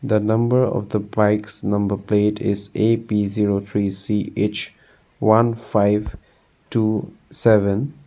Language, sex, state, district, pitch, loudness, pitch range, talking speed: English, male, Assam, Sonitpur, 105 Hz, -20 LUFS, 100-110 Hz, 120 wpm